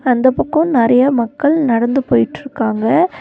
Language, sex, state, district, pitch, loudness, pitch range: Tamil, female, Tamil Nadu, Nilgiris, 255 Hz, -14 LUFS, 230-285 Hz